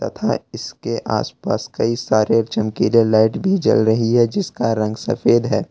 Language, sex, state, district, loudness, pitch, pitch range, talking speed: Hindi, male, Jharkhand, Ranchi, -18 LUFS, 115 Hz, 110-120 Hz, 155 wpm